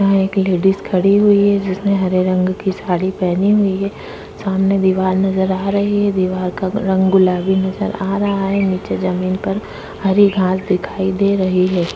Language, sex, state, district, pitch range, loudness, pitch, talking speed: Hindi, female, Maharashtra, Chandrapur, 185-200 Hz, -16 LUFS, 190 Hz, 185 wpm